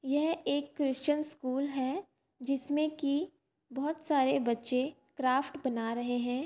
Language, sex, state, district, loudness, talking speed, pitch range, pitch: Hindi, female, Uttar Pradesh, Varanasi, -33 LUFS, 130 wpm, 260-300 Hz, 275 Hz